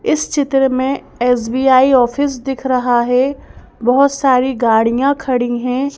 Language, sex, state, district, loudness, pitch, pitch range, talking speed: Hindi, female, Madhya Pradesh, Bhopal, -14 LUFS, 260 Hz, 245-275 Hz, 130 wpm